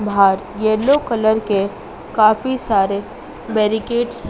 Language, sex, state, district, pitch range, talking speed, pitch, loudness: Hindi, female, Madhya Pradesh, Dhar, 205-230 Hz, 110 wpm, 215 Hz, -17 LUFS